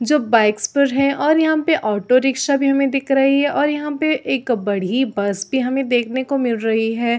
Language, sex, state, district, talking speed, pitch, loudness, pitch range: Hindi, female, Chhattisgarh, Raigarh, 215 wpm, 265 Hz, -18 LUFS, 230-280 Hz